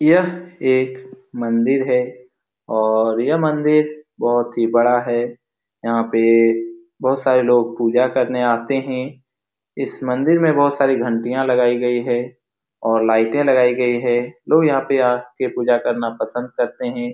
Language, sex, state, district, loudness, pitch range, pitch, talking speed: Hindi, male, Bihar, Supaul, -18 LUFS, 120-135 Hz, 125 Hz, 150 wpm